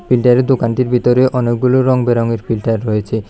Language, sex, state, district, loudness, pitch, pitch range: Bengali, male, Tripura, South Tripura, -14 LUFS, 125 Hz, 115-125 Hz